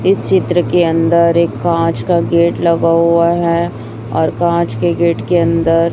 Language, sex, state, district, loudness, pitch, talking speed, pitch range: Hindi, female, Chhattisgarh, Raipur, -13 LUFS, 170 Hz, 170 wpm, 165-170 Hz